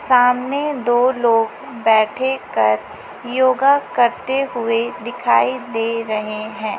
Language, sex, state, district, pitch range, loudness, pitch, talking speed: Hindi, female, Chhattisgarh, Raipur, 225-255 Hz, -18 LUFS, 240 Hz, 105 wpm